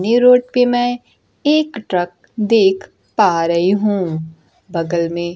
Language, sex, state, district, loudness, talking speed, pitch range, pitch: Hindi, female, Bihar, Kaimur, -16 LUFS, 135 wpm, 170-245 Hz, 195 Hz